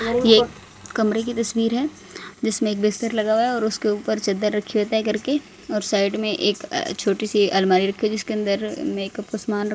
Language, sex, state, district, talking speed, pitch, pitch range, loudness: Hindi, female, Haryana, Rohtak, 215 wpm, 215 Hz, 210-230 Hz, -22 LUFS